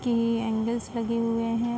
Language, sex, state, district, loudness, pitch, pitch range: Hindi, female, Uttar Pradesh, Budaun, -27 LUFS, 230 Hz, 230-235 Hz